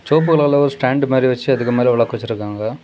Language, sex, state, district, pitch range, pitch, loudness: Tamil, male, Tamil Nadu, Kanyakumari, 120-140 Hz, 130 Hz, -16 LUFS